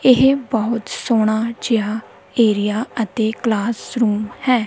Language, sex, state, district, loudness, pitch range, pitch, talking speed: Punjabi, female, Punjab, Kapurthala, -19 LUFS, 215-240 Hz, 225 Hz, 105 wpm